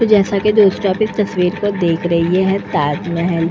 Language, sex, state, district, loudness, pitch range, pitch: Hindi, female, Uttar Pradesh, Etah, -15 LUFS, 170-205 Hz, 185 Hz